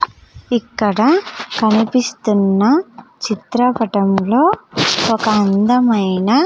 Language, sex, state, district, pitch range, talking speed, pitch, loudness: Telugu, female, Andhra Pradesh, Sri Satya Sai, 210-250 Hz, 45 wpm, 225 Hz, -15 LUFS